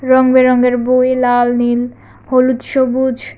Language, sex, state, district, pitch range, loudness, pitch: Bengali, female, Tripura, West Tripura, 245-255 Hz, -13 LUFS, 255 Hz